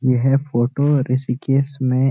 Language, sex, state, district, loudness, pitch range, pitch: Hindi, male, Uttarakhand, Uttarkashi, -19 LUFS, 125-135 Hz, 130 Hz